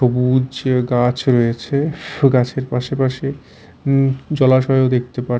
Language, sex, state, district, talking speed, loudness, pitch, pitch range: Bengali, male, Chhattisgarh, Raipur, 110 wpm, -17 LUFS, 130 Hz, 125-135 Hz